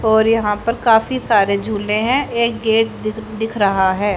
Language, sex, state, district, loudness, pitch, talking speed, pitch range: Hindi, female, Haryana, Charkhi Dadri, -17 LUFS, 220 Hz, 185 wpm, 210-230 Hz